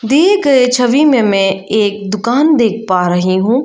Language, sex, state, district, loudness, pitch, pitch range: Hindi, female, Arunachal Pradesh, Lower Dibang Valley, -12 LUFS, 225 Hz, 195-270 Hz